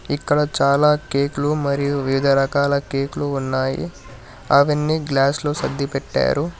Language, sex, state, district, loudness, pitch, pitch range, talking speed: Telugu, male, Telangana, Hyderabad, -19 LUFS, 140 Hz, 135-145 Hz, 110 wpm